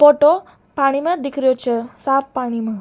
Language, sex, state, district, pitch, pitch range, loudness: Rajasthani, female, Rajasthan, Nagaur, 275 Hz, 245-295 Hz, -18 LUFS